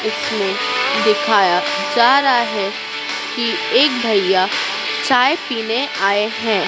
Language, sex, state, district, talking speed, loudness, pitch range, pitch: Hindi, female, Madhya Pradesh, Dhar, 110 wpm, -16 LUFS, 200-245 Hz, 225 Hz